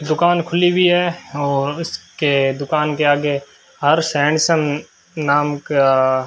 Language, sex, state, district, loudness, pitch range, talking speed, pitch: Hindi, male, Rajasthan, Bikaner, -17 LUFS, 140-165 Hz, 145 wpm, 145 Hz